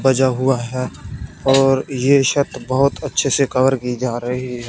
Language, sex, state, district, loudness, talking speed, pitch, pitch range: Hindi, male, Punjab, Fazilka, -18 LUFS, 165 wpm, 130 Hz, 125-135 Hz